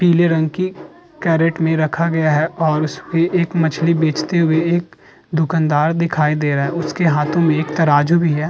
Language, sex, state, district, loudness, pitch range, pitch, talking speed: Hindi, male, Uttar Pradesh, Muzaffarnagar, -17 LUFS, 155-170 Hz, 160 Hz, 190 wpm